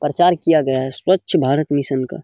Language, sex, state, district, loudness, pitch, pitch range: Hindi, male, Bihar, Jamui, -17 LUFS, 145 Hz, 135-175 Hz